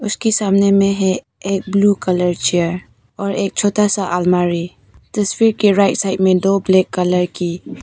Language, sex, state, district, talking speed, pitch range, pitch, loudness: Hindi, female, Arunachal Pradesh, Papum Pare, 170 wpm, 180-200 Hz, 195 Hz, -16 LUFS